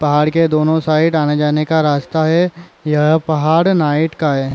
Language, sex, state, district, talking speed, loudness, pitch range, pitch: Chhattisgarhi, male, Chhattisgarh, Raigarh, 210 wpm, -14 LUFS, 150-160 Hz, 155 Hz